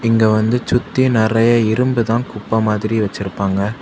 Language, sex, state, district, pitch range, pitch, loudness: Tamil, male, Tamil Nadu, Kanyakumari, 105-120 Hz, 110 Hz, -16 LUFS